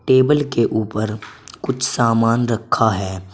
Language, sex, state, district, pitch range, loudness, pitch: Hindi, male, Uttar Pradesh, Saharanpur, 110-120 Hz, -18 LUFS, 115 Hz